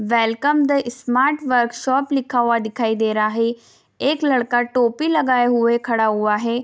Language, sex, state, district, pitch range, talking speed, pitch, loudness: Hindi, female, Bihar, Darbhanga, 230-265 Hz, 170 wpm, 240 Hz, -19 LUFS